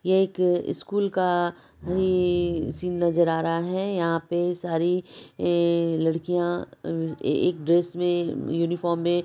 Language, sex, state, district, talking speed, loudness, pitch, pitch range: Maithili, male, Bihar, Supaul, 135 wpm, -25 LUFS, 175 Hz, 170-180 Hz